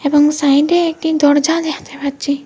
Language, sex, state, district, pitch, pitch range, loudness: Bengali, female, Assam, Hailakandi, 295 Hz, 285-320 Hz, -14 LUFS